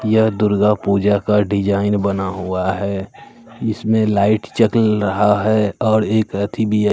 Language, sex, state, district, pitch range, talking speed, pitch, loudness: Hindi, male, Bihar, Katihar, 100-110 Hz, 155 wpm, 105 Hz, -17 LUFS